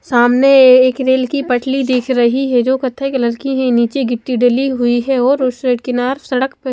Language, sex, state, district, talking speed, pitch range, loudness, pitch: Hindi, female, Chandigarh, Chandigarh, 225 wpm, 245-265 Hz, -14 LUFS, 255 Hz